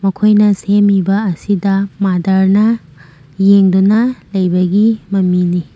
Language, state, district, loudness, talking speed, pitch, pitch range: Manipuri, Manipur, Imphal West, -13 LUFS, 75 wpm, 195 Hz, 180-205 Hz